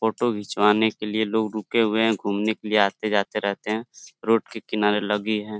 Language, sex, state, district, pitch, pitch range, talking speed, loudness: Hindi, male, Uttar Pradesh, Deoria, 110 Hz, 105-110 Hz, 215 wpm, -23 LUFS